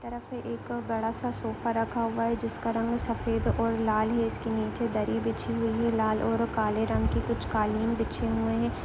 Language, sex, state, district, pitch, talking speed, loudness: Hindi, female, Uttar Pradesh, Hamirpur, 220 Hz, 210 wpm, -29 LUFS